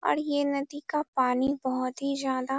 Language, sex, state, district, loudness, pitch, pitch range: Hindi, female, Bihar, Darbhanga, -29 LUFS, 275 Hz, 260-285 Hz